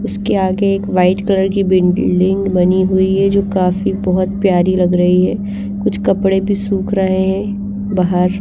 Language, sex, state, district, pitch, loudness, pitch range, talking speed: Hindi, female, Bihar, Patna, 190 Hz, -14 LUFS, 180-195 Hz, 170 wpm